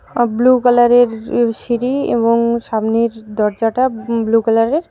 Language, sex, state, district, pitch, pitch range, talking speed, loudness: Bengali, female, West Bengal, Alipurduar, 235 Hz, 225-240 Hz, 120 wpm, -15 LUFS